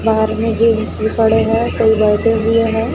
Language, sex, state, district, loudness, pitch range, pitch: Hindi, female, Maharashtra, Gondia, -14 LUFS, 220-225 Hz, 225 Hz